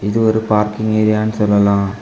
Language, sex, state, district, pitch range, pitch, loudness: Tamil, male, Tamil Nadu, Kanyakumari, 105-110 Hz, 105 Hz, -15 LUFS